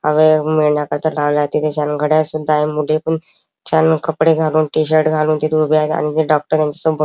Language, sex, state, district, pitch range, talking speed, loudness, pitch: Marathi, male, Maharashtra, Chandrapur, 150-155 Hz, 185 wpm, -16 LUFS, 155 Hz